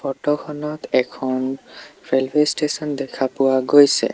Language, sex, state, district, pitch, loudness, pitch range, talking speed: Assamese, male, Assam, Sonitpur, 135 Hz, -20 LUFS, 130-150 Hz, 115 wpm